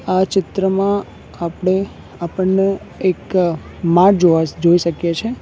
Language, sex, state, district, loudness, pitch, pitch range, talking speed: Gujarati, male, Gujarat, Valsad, -17 LUFS, 185 Hz, 170-195 Hz, 110 wpm